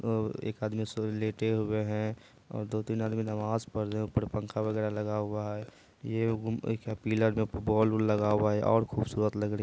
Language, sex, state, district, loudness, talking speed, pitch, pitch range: Hindi, male, Bihar, Purnia, -31 LUFS, 235 wpm, 110 Hz, 105-110 Hz